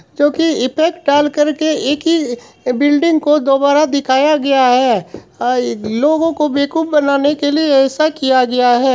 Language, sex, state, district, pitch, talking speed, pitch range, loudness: Hindi, female, Bihar, Supaul, 290 Hz, 145 wpm, 260-305 Hz, -14 LUFS